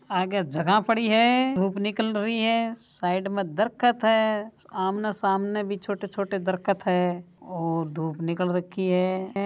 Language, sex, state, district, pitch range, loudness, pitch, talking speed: Marwari, male, Rajasthan, Nagaur, 180-215 Hz, -25 LUFS, 200 Hz, 145 wpm